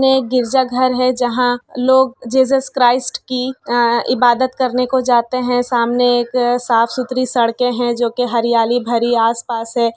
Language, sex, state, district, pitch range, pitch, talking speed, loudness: Hindi, female, Bihar, Kishanganj, 240-255 Hz, 245 Hz, 150 wpm, -15 LUFS